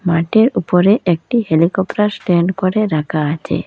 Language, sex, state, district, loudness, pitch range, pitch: Bengali, female, Assam, Hailakandi, -15 LUFS, 165-210 Hz, 180 Hz